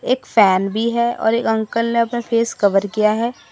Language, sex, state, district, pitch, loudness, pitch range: Hindi, female, Assam, Sonitpur, 230 Hz, -17 LUFS, 215-235 Hz